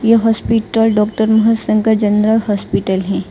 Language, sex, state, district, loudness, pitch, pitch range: Hindi, female, Gujarat, Valsad, -14 LUFS, 220 Hz, 210-225 Hz